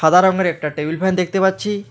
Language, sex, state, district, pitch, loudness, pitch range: Bengali, male, West Bengal, Alipurduar, 185 Hz, -18 LUFS, 160-190 Hz